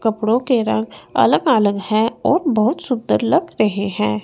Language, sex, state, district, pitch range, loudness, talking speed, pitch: Hindi, female, Chandigarh, Chandigarh, 205-245 Hz, -17 LUFS, 170 wpm, 220 Hz